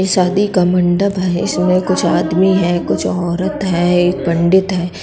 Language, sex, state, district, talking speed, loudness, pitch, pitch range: Bundeli, female, Uttar Pradesh, Budaun, 165 wpm, -14 LUFS, 180 Hz, 175-185 Hz